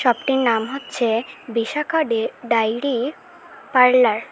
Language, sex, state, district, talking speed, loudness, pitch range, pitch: Bengali, female, Assam, Hailakandi, 125 wpm, -20 LUFS, 230-275 Hz, 250 Hz